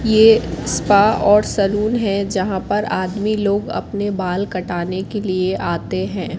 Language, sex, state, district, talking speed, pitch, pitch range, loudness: Hindi, female, Madhya Pradesh, Katni, 150 wpm, 200 Hz, 190-210 Hz, -18 LUFS